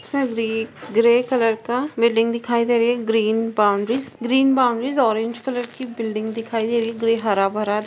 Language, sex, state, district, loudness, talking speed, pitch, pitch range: Hindi, female, Bihar, Saran, -20 LUFS, 185 wpm, 230 Hz, 225-245 Hz